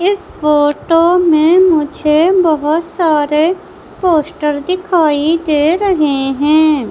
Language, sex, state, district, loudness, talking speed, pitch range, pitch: Hindi, female, Madhya Pradesh, Umaria, -12 LUFS, 95 wpm, 300-350 Hz, 315 Hz